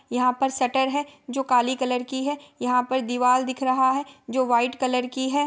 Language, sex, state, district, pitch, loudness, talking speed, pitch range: Hindi, female, Bihar, Gopalganj, 260 Hz, -24 LUFS, 220 wpm, 250-270 Hz